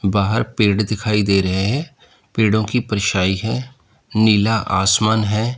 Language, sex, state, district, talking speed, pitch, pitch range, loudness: Hindi, male, Uttar Pradesh, Lalitpur, 140 wpm, 110 Hz, 100-110 Hz, -18 LUFS